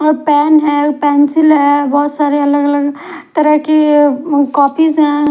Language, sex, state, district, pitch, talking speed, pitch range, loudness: Hindi, female, Punjab, Fazilka, 290 Hz, 145 wpm, 290-305 Hz, -11 LUFS